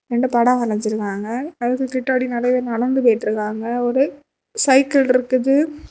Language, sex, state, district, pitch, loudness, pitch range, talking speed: Tamil, female, Tamil Nadu, Kanyakumari, 250 Hz, -19 LUFS, 235-265 Hz, 120 wpm